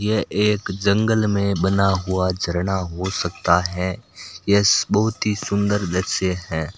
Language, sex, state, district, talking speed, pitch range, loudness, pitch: Hindi, male, Rajasthan, Bikaner, 140 wpm, 90-105 Hz, -20 LUFS, 95 Hz